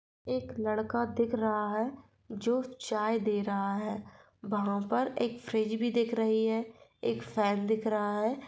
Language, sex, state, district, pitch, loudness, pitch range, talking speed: Hindi, female, Jharkhand, Sahebganj, 220 Hz, -32 LUFS, 205-235 Hz, 165 wpm